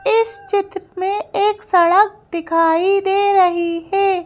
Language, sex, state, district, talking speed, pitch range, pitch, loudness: Hindi, female, Madhya Pradesh, Bhopal, 125 wpm, 350-405 Hz, 390 Hz, -16 LUFS